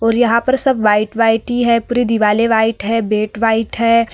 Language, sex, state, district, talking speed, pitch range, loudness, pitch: Hindi, female, Uttar Pradesh, Varanasi, 220 wpm, 220-235 Hz, -15 LUFS, 230 Hz